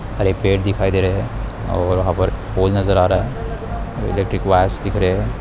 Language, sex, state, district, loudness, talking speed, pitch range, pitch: Hindi, male, Bihar, Bhagalpur, -19 LUFS, 220 wpm, 95-110 Hz, 95 Hz